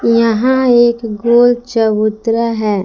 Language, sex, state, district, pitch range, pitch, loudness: Hindi, female, Jharkhand, Palamu, 220-240 Hz, 230 Hz, -12 LUFS